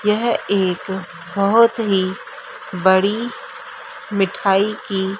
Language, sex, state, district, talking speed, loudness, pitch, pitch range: Hindi, female, Madhya Pradesh, Dhar, 80 wpm, -18 LUFS, 195 Hz, 190-210 Hz